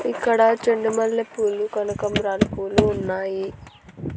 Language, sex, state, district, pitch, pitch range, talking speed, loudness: Telugu, female, Andhra Pradesh, Annamaya, 210 Hz, 200-225 Hz, 70 wpm, -22 LUFS